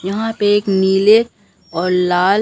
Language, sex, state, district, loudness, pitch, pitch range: Hindi, male, Bihar, Katihar, -14 LUFS, 195 Hz, 185-210 Hz